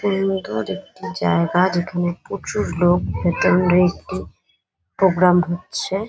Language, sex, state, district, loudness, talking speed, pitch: Bengali, female, West Bengal, Paschim Medinipur, -19 LUFS, 110 wpm, 175 Hz